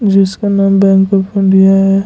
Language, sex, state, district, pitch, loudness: Hindi, male, Jharkhand, Ranchi, 195 Hz, -10 LUFS